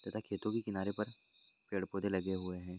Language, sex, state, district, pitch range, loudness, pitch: Hindi, male, Bihar, Supaul, 95-105 Hz, -39 LUFS, 100 Hz